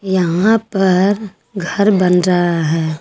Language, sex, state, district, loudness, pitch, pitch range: Hindi, female, Jharkhand, Garhwa, -14 LUFS, 185 Hz, 175-200 Hz